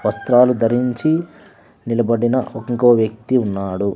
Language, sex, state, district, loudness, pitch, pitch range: Telugu, male, Andhra Pradesh, Sri Satya Sai, -17 LUFS, 120 Hz, 110-125 Hz